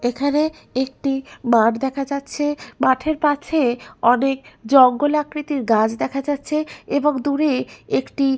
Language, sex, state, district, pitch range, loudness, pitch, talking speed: Bengali, female, West Bengal, Malda, 260-295 Hz, -20 LUFS, 275 Hz, 115 wpm